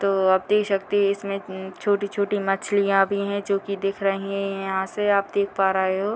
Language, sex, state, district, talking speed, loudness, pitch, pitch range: Hindi, female, Bihar, Muzaffarpur, 225 wpm, -23 LUFS, 200 Hz, 195-200 Hz